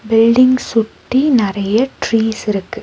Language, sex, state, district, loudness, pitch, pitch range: Tamil, female, Tamil Nadu, Nilgiris, -14 LUFS, 225 Hz, 220-255 Hz